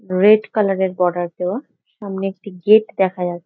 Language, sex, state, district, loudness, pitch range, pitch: Bengali, female, West Bengal, Jalpaiguri, -18 LUFS, 180-210 Hz, 195 Hz